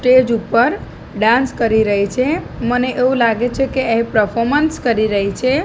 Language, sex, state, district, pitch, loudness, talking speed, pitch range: Gujarati, female, Gujarat, Gandhinagar, 240 Hz, -16 LUFS, 170 wpm, 220-255 Hz